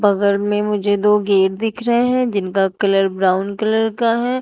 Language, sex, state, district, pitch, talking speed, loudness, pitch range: Hindi, female, Uttar Pradesh, Shamli, 205 Hz, 190 wpm, -17 LUFS, 195-225 Hz